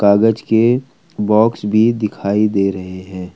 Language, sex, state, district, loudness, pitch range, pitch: Hindi, male, Jharkhand, Ranchi, -15 LUFS, 100-110 Hz, 105 Hz